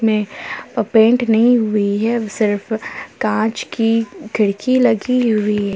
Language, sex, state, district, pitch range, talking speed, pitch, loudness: Hindi, female, Jharkhand, Palamu, 210-235 Hz, 115 wpm, 220 Hz, -17 LUFS